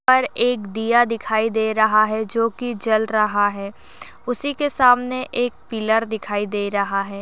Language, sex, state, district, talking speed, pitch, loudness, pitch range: Hindi, female, Uttar Pradesh, Gorakhpur, 175 wpm, 220 Hz, -19 LUFS, 210-245 Hz